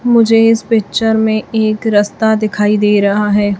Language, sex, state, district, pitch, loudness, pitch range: Hindi, female, Chhattisgarh, Raipur, 215 Hz, -12 LUFS, 210-225 Hz